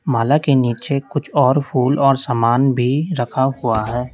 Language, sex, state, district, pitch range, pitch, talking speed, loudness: Hindi, male, Uttar Pradesh, Lalitpur, 120-140 Hz, 130 Hz, 175 wpm, -17 LUFS